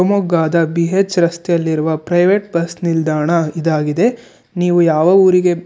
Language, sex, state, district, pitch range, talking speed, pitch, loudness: Kannada, male, Karnataka, Shimoga, 160-180 Hz, 105 wpm, 170 Hz, -14 LUFS